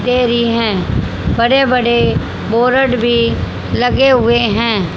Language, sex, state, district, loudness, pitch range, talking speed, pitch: Hindi, female, Haryana, Charkhi Dadri, -13 LUFS, 230-250 Hz, 120 wpm, 235 Hz